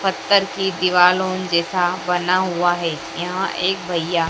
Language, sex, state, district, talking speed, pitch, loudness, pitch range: Hindi, female, Madhya Pradesh, Dhar, 140 wpm, 180 Hz, -19 LUFS, 170-185 Hz